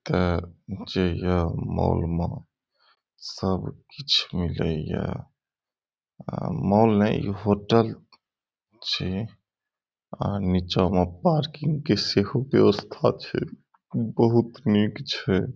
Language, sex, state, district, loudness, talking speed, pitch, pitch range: Maithili, male, Bihar, Saharsa, -24 LUFS, 100 wpm, 100 Hz, 90-115 Hz